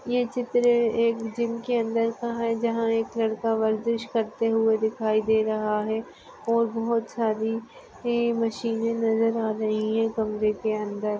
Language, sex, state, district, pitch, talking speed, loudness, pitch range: Hindi, female, Maharashtra, Aurangabad, 225 Hz, 155 wpm, -25 LUFS, 220-230 Hz